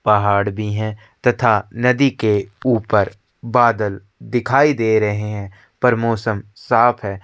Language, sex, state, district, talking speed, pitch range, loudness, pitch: Hindi, male, Chhattisgarh, Korba, 135 wpm, 105-120 Hz, -18 LUFS, 110 Hz